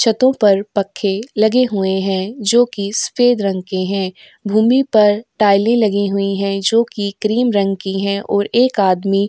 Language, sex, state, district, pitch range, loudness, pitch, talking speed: Hindi, female, Uttar Pradesh, Jyotiba Phule Nagar, 195-225 Hz, -16 LUFS, 205 Hz, 170 wpm